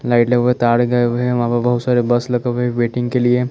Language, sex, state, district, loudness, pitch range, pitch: Hindi, male, Chandigarh, Chandigarh, -16 LUFS, 120-125 Hz, 120 Hz